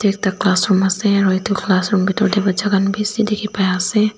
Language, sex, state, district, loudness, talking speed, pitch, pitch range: Nagamese, female, Nagaland, Dimapur, -17 LUFS, 200 wpm, 200 Hz, 190-210 Hz